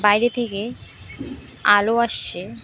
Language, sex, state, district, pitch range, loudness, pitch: Bengali, female, West Bengal, Cooch Behar, 205-235 Hz, -19 LUFS, 215 Hz